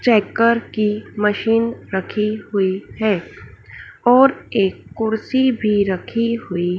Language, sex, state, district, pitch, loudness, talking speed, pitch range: Hindi, female, Madhya Pradesh, Dhar, 215 Hz, -18 LUFS, 105 wpm, 195-230 Hz